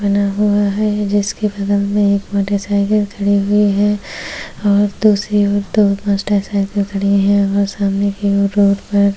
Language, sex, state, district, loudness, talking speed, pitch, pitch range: Hindi, female, Uttar Pradesh, Jyotiba Phule Nagar, -15 LUFS, 165 wpm, 200 Hz, 200-205 Hz